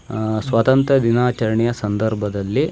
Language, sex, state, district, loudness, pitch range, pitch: Kannada, male, Karnataka, Shimoga, -18 LUFS, 110-125 Hz, 110 Hz